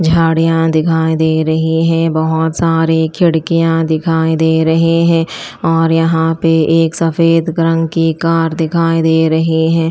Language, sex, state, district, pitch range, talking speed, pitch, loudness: Hindi, female, Chandigarh, Chandigarh, 160-165 Hz, 145 wpm, 165 Hz, -12 LUFS